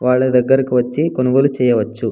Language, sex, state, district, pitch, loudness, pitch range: Telugu, male, Andhra Pradesh, Anantapur, 125 Hz, -15 LUFS, 125-135 Hz